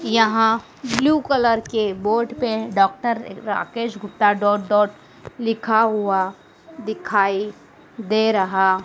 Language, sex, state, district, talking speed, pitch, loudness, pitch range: Hindi, female, Madhya Pradesh, Dhar, 110 wpm, 220 Hz, -20 LUFS, 205-230 Hz